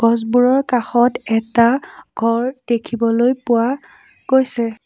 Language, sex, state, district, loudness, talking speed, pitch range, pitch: Assamese, female, Assam, Sonitpur, -17 LUFS, 85 wpm, 230-255 Hz, 240 Hz